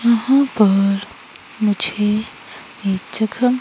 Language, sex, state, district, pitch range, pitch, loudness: Hindi, female, Himachal Pradesh, Shimla, 200-235 Hz, 215 Hz, -18 LUFS